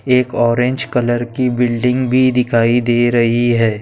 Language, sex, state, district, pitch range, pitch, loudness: Hindi, male, Maharashtra, Pune, 120-125 Hz, 120 Hz, -15 LUFS